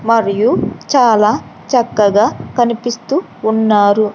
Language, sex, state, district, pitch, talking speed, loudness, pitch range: Telugu, female, Andhra Pradesh, Sri Satya Sai, 220 Hz, 70 wpm, -14 LUFS, 210-240 Hz